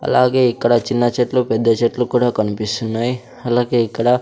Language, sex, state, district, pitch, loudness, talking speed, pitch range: Telugu, male, Andhra Pradesh, Sri Satya Sai, 120 Hz, -17 LUFS, 140 wpm, 115-125 Hz